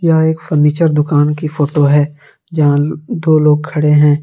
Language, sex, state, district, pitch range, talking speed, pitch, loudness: Hindi, male, Jharkhand, Palamu, 150-160 Hz, 170 wpm, 150 Hz, -13 LUFS